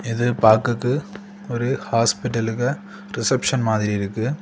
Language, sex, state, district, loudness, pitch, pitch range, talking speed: Tamil, male, Tamil Nadu, Kanyakumari, -21 LUFS, 120 Hz, 115-135 Hz, 95 wpm